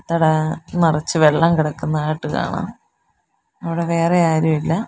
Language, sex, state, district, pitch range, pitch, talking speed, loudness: Malayalam, female, Kerala, Kollam, 155-170 Hz, 160 Hz, 75 wpm, -18 LUFS